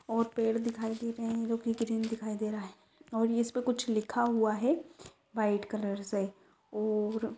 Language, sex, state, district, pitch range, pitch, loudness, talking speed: Hindi, female, Bihar, Jamui, 215-230 Hz, 225 Hz, -33 LUFS, 195 wpm